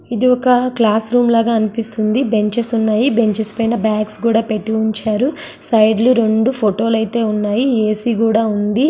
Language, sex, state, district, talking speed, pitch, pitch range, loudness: Telugu, female, Andhra Pradesh, Srikakulam, 150 wpm, 225 Hz, 215-235 Hz, -15 LUFS